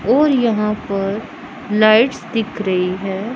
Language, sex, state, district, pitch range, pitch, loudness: Hindi, female, Punjab, Pathankot, 200-245 Hz, 215 Hz, -17 LUFS